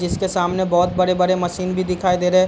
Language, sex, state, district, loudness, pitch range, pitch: Hindi, male, Bihar, Darbhanga, -19 LUFS, 180-185 Hz, 180 Hz